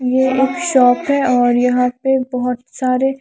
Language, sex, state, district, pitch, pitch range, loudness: Hindi, female, Haryana, Charkhi Dadri, 255 Hz, 250-265 Hz, -15 LUFS